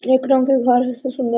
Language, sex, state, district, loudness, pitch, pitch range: Hindi, female, Jharkhand, Sahebganj, -17 LUFS, 260 Hz, 250-265 Hz